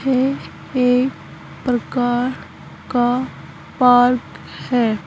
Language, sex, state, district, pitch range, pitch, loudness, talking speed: Hindi, female, Uttar Pradesh, Saharanpur, 245-255 Hz, 250 Hz, -18 LUFS, 70 wpm